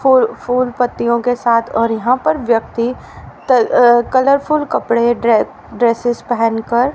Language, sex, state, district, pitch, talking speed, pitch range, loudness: Hindi, female, Haryana, Rohtak, 240 Hz, 145 wpm, 235-255 Hz, -15 LUFS